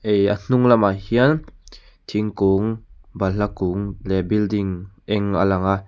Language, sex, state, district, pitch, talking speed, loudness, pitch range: Mizo, male, Mizoram, Aizawl, 100 Hz, 145 wpm, -20 LUFS, 95-105 Hz